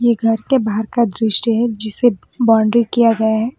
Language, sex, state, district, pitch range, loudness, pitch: Hindi, female, West Bengal, Alipurduar, 220-235 Hz, -15 LUFS, 225 Hz